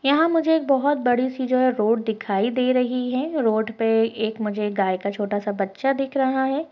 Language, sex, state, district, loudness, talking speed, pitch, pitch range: Hindi, female, Chhattisgarh, Balrampur, -22 LUFS, 225 wpm, 250 Hz, 220-270 Hz